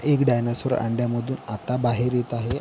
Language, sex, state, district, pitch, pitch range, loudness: Marathi, male, Maharashtra, Pune, 120 Hz, 120-125 Hz, -24 LUFS